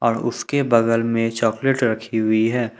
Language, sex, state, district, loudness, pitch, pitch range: Hindi, male, Jharkhand, Ranchi, -20 LUFS, 115 Hz, 115-120 Hz